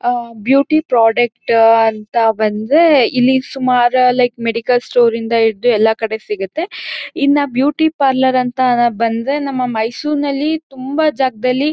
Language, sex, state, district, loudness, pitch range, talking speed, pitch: Kannada, female, Karnataka, Mysore, -14 LUFS, 230-280 Hz, 135 wpm, 250 Hz